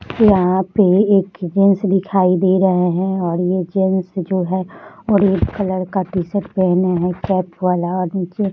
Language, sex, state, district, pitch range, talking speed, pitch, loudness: Hindi, female, Bihar, Jahanabad, 180-195 Hz, 170 wpm, 185 Hz, -17 LUFS